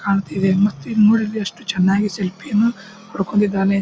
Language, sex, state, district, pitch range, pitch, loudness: Kannada, male, Karnataka, Bijapur, 190-215 Hz, 200 Hz, -18 LUFS